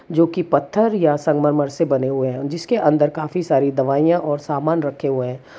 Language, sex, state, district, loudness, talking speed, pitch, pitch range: Hindi, female, Gujarat, Valsad, -19 LUFS, 205 wpm, 145 Hz, 140-165 Hz